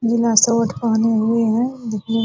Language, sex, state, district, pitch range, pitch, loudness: Hindi, female, Bihar, Purnia, 225-235 Hz, 230 Hz, -17 LUFS